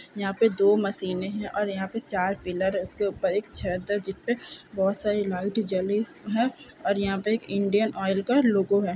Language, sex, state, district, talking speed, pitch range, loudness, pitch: Hindi, female, Chhattisgarh, Bilaspur, 205 wpm, 195-215 Hz, -26 LUFS, 200 Hz